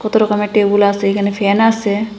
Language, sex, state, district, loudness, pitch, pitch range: Bengali, female, Assam, Hailakandi, -14 LUFS, 210 Hz, 200-215 Hz